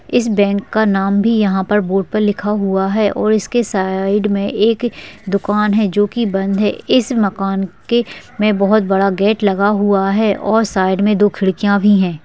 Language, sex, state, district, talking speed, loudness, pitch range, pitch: Hindi, female, Bihar, Madhepura, 185 wpm, -15 LUFS, 195-215 Hz, 205 Hz